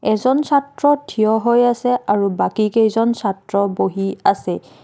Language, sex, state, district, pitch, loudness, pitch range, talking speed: Assamese, female, Assam, Kamrup Metropolitan, 220 Hz, -17 LUFS, 200-245 Hz, 135 wpm